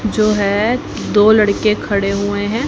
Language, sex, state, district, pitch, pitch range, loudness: Hindi, female, Haryana, Jhajjar, 210 Hz, 200-215 Hz, -15 LUFS